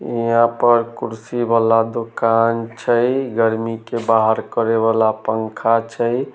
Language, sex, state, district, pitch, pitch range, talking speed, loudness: Maithili, male, Bihar, Samastipur, 115 Hz, 115-120 Hz, 125 wpm, -18 LUFS